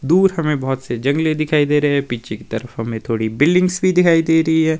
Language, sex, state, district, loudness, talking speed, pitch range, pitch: Hindi, male, Himachal Pradesh, Shimla, -17 LUFS, 250 wpm, 120-160 Hz, 150 Hz